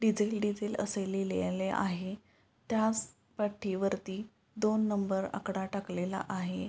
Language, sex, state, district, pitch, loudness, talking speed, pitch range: Marathi, female, Maharashtra, Pune, 200 Hz, -34 LUFS, 110 wpm, 190-210 Hz